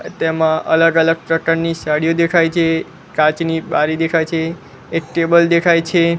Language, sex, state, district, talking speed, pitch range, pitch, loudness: Gujarati, male, Gujarat, Gandhinagar, 145 wpm, 160-165 Hz, 165 Hz, -16 LUFS